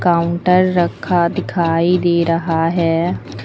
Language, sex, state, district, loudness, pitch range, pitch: Hindi, female, Uttar Pradesh, Lucknow, -16 LUFS, 165-180 Hz, 170 Hz